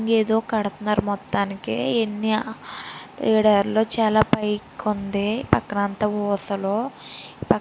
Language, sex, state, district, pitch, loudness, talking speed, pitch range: Telugu, female, Andhra Pradesh, Srikakulam, 210 Hz, -23 LUFS, 105 wpm, 205-220 Hz